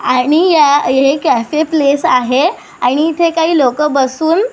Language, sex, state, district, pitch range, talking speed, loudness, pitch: Marathi, female, Maharashtra, Washim, 260-325 Hz, 145 wpm, -12 LUFS, 295 Hz